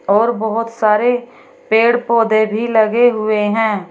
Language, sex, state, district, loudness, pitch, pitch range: Hindi, female, Uttar Pradesh, Shamli, -15 LUFS, 220 Hz, 215-235 Hz